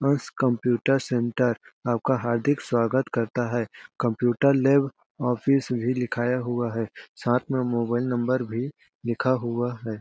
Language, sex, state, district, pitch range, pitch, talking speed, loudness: Hindi, male, Chhattisgarh, Balrampur, 120-130 Hz, 120 Hz, 130 wpm, -25 LUFS